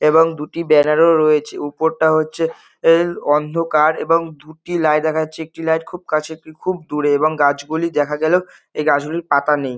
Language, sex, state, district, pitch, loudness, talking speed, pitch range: Bengali, male, West Bengal, North 24 Parganas, 155 Hz, -17 LUFS, 195 wpm, 150-165 Hz